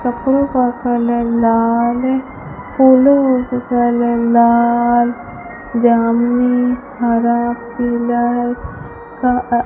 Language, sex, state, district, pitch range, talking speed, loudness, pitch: Hindi, female, Rajasthan, Bikaner, 235-250 Hz, 85 wpm, -14 LUFS, 240 Hz